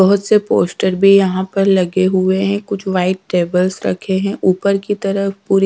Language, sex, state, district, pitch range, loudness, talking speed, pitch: Hindi, female, Bihar, Katihar, 185-195 Hz, -15 LUFS, 200 wpm, 195 Hz